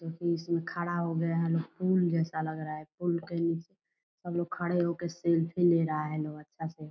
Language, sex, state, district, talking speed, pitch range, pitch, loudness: Hindi, female, Bihar, Purnia, 225 wpm, 160-175 Hz, 170 Hz, -31 LUFS